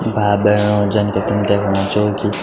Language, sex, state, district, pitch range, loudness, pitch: Garhwali, male, Uttarakhand, Tehri Garhwal, 100-105 Hz, -15 LUFS, 105 Hz